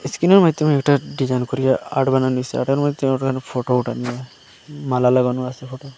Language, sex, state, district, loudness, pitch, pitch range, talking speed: Bengali, male, Assam, Hailakandi, -19 LUFS, 130 Hz, 125-140 Hz, 130 wpm